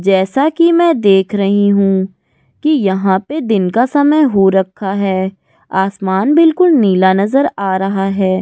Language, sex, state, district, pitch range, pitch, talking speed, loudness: Hindi, female, Goa, North and South Goa, 190-280 Hz, 195 Hz, 165 wpm, -13 LUFS